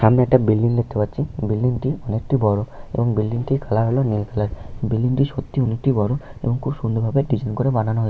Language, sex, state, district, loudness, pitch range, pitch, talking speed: Bengali, male, West Bengal, Malda, -21 LUFS, 110-135 Hz, 120 Hz, 215 wpm